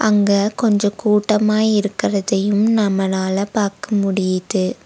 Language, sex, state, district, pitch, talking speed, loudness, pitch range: Tamil, female, Tamil Nadu, Nilgiris, 205 Hz, 85 wpm, -17 LUFS, 195-210 Hz